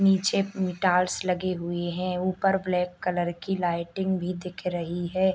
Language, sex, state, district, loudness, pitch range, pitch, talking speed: Hindi, male, Bihar, Bhagalpur, -27 LUFS, 175-190 Hz, 180 Hz, 170 wpm